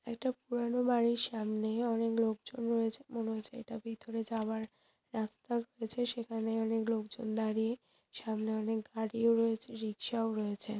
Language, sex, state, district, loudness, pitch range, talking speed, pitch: Bengali, female, West Bengal, Purulia, -35 LUFS, 220-235 Hz, 150 wpm, 225 Hz